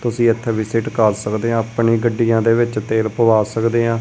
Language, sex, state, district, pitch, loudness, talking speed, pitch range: Punjabi, male, Punjab, Kapurthala, 115 Hz, -17 LUFS, 210 wpm, 110-115 Hz